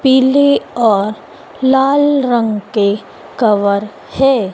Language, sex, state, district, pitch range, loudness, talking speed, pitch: Hindi, female, Madhya Pradesh, Dhar, 210-265 Hz, -13 LUFS, 90 wpm, 240 Hz